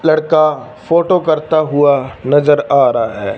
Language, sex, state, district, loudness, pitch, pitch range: Hindi, male, Punjab, Fazilka, -13 LUFS, 155 Hz, 145-155 Hz